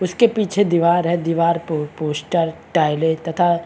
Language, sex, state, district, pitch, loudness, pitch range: Hindi, male, Chhattisgarh, Bilaspur, 170 Hz, -19 LUFS, 160-175 Hz